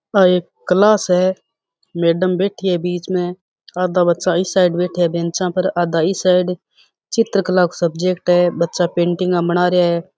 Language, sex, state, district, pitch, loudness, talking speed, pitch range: Rajasthani, female, Rajasthan, Churu, 180 Hz, -17 LUFS, 160 wpm, 175-185 Hz